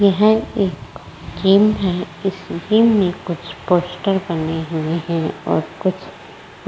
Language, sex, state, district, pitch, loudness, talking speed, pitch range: Hindi, female, Uttar Pradesh, Varanasi, 185 Hz, -18 LUFS, 135 wpm, 170-200 Hz